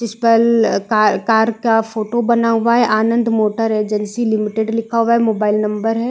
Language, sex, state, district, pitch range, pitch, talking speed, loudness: Hindi, female, Chhattisgarh, Balrampur, 215-230 Hz, 225 Hz, 185 wpm, -16 LUFS